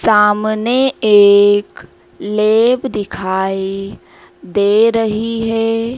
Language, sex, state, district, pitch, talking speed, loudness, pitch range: Hindi, female, Madhya Pradesh, Dhar, 215 Hz, 70 wpm, -13 LUFS, 205-225 Hz